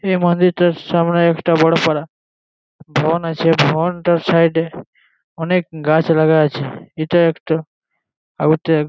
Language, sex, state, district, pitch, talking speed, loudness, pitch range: Bengali, male, West Bengal, Jalpaiguri, 165 Hz, 110 wpm, -16 LUFS, 155-170 Hz